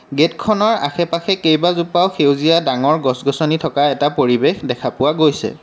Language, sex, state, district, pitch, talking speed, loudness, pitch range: Assamese, male, Assam, Kamrup Metropolitan, 155 Hz, 130 wpm, -16 LUFS, 145-170 Hz